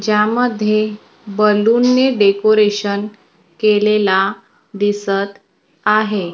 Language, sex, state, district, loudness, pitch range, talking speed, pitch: Marathi, female, Maharashtra, Gondia, -15 LUFS, 200-215 Hz, 65 wpm, 210 Hz